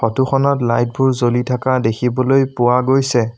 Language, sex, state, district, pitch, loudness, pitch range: Assamese, male, Assam, Sonitpur, 125 Hz, -16 LUFS, 120-130 Hz